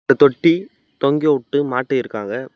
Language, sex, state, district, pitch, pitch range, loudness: Tamil, male, Tamil Nadu, Namakkal, 140 Hz, 135-150 Hz, -18 LUFS